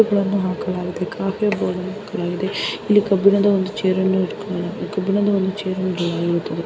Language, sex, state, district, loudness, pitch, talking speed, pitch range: Kannada, female, Karnataka, Dharwad, -20 LUFS, 195 Hz, 90 wpm, 185-200 Hz